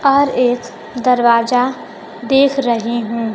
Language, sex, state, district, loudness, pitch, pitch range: Hindi, female, Bihar, Kaimur, -15 LUFS, 245 Hz, 230-260 Hz